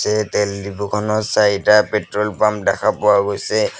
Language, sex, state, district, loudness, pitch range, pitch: Assamese, male, Assam, Sonitpur, -17 LUFS, 100-105 Hz, 105 Hz